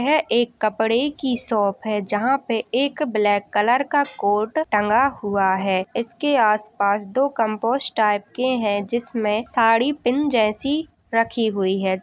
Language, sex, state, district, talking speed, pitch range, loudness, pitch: Hindi, female, Bihar, Jamui, 155 wpm, 210-260 Hz, -21 LUFS, 225 Hz